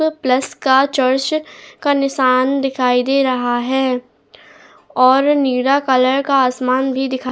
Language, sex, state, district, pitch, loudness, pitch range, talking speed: Hindi, female, Goa, North and South Goa, 265 Hz, -16 LUFS, 255-275 Hz, 140 wpm